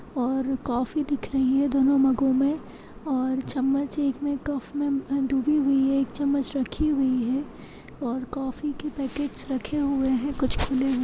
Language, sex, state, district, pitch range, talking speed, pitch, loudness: Hindi, female, Chhattisgarh, Kabirdham, 265-285 Hz, 175 wpm, 275 Hz, -25 LUFS